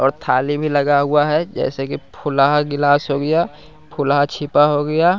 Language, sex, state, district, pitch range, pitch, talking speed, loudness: Hindi, male, Bihar, West Champaran, 145-155 Hz, 145 Hz, 185 wpm, -17 LUFS